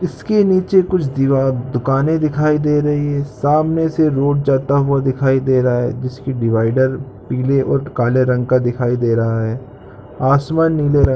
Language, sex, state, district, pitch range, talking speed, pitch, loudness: Hindi, male, Andhra Pradesh, Krishna, 125-150 Hz, 165 wpm, 135 Hz, -16 LUFS